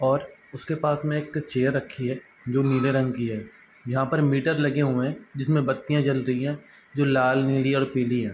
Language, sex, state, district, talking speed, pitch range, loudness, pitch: Hindi, male, Bihar, Sitamarhi, 215 wpm, 130-145 Hz, -25 LUFS, 135 Hz